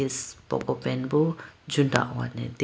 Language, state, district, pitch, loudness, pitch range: Idu Mishmi, Arunachal Pradesh, Lower Dibang Valley, 130 Hz, -27 LUFS, 90-145 Hz